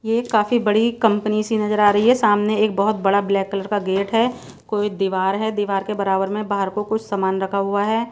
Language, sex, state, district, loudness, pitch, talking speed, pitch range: Hindi, female, Odisha, Sambalpur, -19 LUFS, 210 Hz, 235 wpm, 195-220 Hz